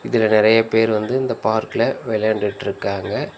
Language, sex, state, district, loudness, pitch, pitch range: Tamil, male, Tamil Nadu, Nilgiris, -18 LUFS, 110 Hz, 110-115 Hz